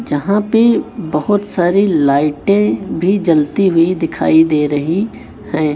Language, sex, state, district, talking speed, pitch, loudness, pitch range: Hindi, male, Chhattisgarh, Raipur, 125 wpm, 170 Hz, -14 LUFS, 150-205 Hz